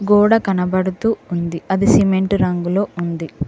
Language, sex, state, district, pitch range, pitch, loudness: Telugu, female, Telangana, Mahabubabad, 175-200 Hz, 190 Hz, -17 LUFS